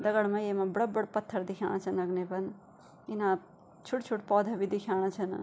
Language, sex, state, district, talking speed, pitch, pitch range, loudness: Garhwali, female, Uttarakhand, Tehri Garhwal, 185 wpm, 195 Hz, 185-210 Hz, -32 LUFS